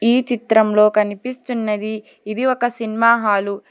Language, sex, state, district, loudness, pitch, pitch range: Telugu, female, Telangana, Hyderabad, -17 LUFS, 220 Hz, 210-240 Hz